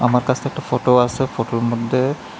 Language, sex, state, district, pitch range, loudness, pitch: Bengali, male, Tripura, West Tripura, 120-130 Hz, -19 LUFS, 125 Hz